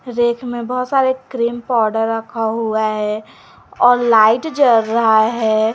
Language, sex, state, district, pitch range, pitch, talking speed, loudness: Hindi, female, Jharkhand, Garhwa, 220-245 Hz, 230 Hz, 145 wpm, -16 LUFS